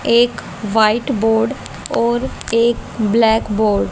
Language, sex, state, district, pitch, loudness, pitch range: Hindi, female, Haryana, Jhajjar, 225 Hz, -16 LUFS, 215-235 Hz